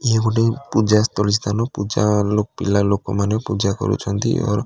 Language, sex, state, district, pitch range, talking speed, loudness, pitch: Odia, male, Odisha, Khordha, 100-110 Hz, 155 wpm, -19 LUFS, 105 Hz